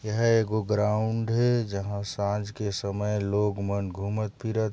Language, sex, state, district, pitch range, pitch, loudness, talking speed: Chhattisgarhi, male, Chhattisgarh, Sarguja, 100-110 Hz, 105 Hz, -27 LUFS, 150 wpm